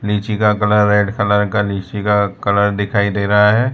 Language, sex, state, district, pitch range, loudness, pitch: Hindi, male, Gujarat, Valsad, 100-105 Hz, -15 LUFS, 105 Hz